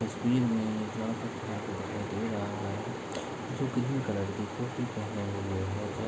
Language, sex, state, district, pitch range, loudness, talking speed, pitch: Hindi, male, Uttar Pradesh, Jyotiba Phule Nagar, 100-115 Hz, -33 LUFS, 160 wpm, 110 Hz